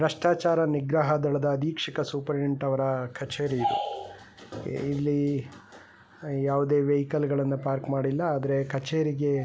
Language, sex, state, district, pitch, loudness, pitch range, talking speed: Kannada, male, Karnataka, Bellary, 145 Hz, -27 LUFS, 135-150 Hz, 95 wpm